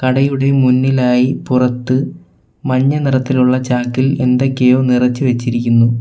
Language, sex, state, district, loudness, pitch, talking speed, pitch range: Malayalam, male, Kerala, Kollam, -14 LUFS, 125 Hz, 90 wpm, 125-130 Hz